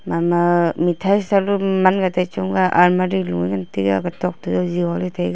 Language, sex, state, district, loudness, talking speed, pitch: Wancho, female, Arunachal Pradesh, Longding, -18 LUFS, 145 wpm, 175 Hz